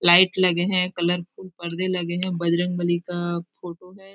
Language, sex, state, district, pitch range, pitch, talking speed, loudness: Hindi, female, Chhattisgarh, Raigarh, 175-185 Hz, 175 Hz, 175 wpm, -23 LUFS